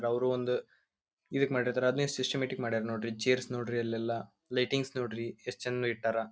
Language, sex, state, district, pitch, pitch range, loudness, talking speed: Kannada, male, Karnataka, Belgaum, 125 Hz, 115-130 Hz, -33 LUFS, 140 wpm